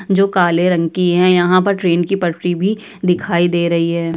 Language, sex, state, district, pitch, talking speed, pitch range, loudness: Hindi, female, Uttar Pradesh, Budaun, 175 Hz, 215 wpm, 170-190 Hz, -15 LUFS